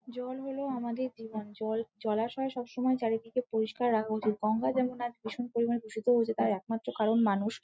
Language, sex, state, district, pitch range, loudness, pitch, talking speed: Bengali, female, West Bengal, Malda, 220-245 Hz, -32 LUFS, 230 Hz, 190 wpm